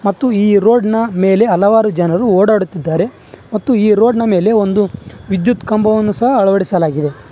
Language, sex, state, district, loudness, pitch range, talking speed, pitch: Kannada, male, Karnataka, Bangalore, -13 LUFS, 190-220 Hz, 150 wpm, 210 Hz